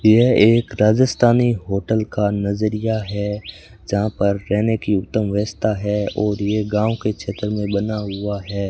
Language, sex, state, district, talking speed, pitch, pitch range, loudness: Hindi, male, Rajasthan, Bikaner, 160 wpm, 105 Hz, 100-110 Hz, -19 LUFS